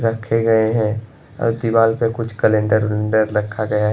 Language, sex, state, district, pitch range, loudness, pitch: Hindi, male, Chhattisgarh, Bastar, 105-115 Hz, -18 LUFS, 110 Hz